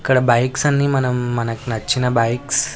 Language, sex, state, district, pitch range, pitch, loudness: Telugu, male, Andhra Pradesh, Sri Satya Sai, 120-135 Hz, 125 Hz, -18 LUFS